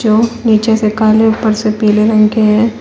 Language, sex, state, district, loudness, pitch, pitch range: Hindi, female, Uttar Pradesh, Shamli, -11 LUFS, 220 Hz, 215-225 Hz